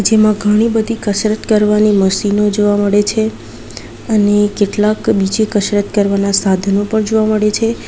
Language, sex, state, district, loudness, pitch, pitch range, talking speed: Gujarati, female, Gujarat, Valsad, -13 LUFS, 210 Hz, 200-215 Hz, 145 wpm